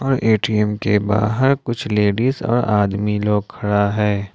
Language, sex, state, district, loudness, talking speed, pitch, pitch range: Hindi, male, Jharkhand, Ranchi, -18 LUFS, 140 wpm, 105 Hz, 105-115 Hz